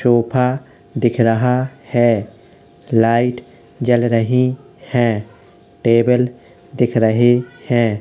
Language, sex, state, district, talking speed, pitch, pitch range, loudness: Hindi, male, Uttar Pradesh, Hamirpur, 90 wpm, 120 Hz, 115-125 Hz, -16 LUFS